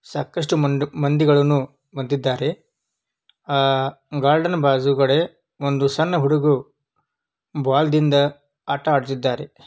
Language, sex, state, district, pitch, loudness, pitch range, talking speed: Kannada, male, Karnataka, Belgaum, 145 Hz, -20 LUFS, 140-150 Hz, 75 wpm